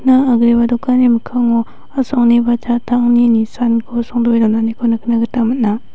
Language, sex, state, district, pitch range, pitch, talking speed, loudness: Garo, female, Meghalaya, West Garo Hills, 230-245 Hz, 235 Hz, 120 wpm, -14 LUFS